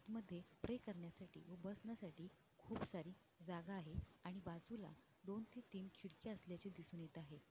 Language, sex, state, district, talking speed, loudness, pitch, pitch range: Marathi, female, Maharashtra, Sindhudurg, 150 wpm, -54 LUFS, 185 Hz, 170-210 Hz